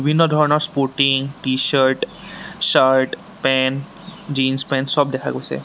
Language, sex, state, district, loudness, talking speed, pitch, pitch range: Assamese, male, Assam, Sonitpur, -18 LUFS, 115 wpm, 135 Hz, 130-150 Hz